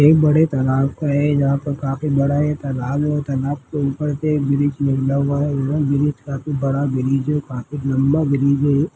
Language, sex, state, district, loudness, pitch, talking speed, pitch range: Hindi, male, Chhattisgarh, Jashpur, -19 LUFS, 140 Hz, 220 wpm, 135-145 Hz